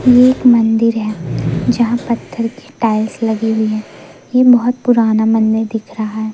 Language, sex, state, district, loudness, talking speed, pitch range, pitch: Hindi, female, Madhya Pradesh, Umaria, -14 LUFS, 170 wpm, 220-245 Hz, 225 Hz